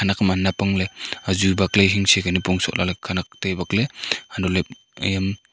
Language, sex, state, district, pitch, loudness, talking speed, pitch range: Wancho, male, Arunachal Pradesh, Longding, 95 Hz, -21 LUFS, 165 wpm, 90-100 Hz